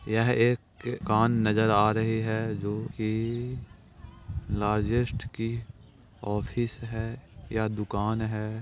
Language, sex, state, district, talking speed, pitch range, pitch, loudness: Hindi, male, Bihar, Jahanabad, 110 wpm, 105-115 Hz, 110 Hz, -28 LUFS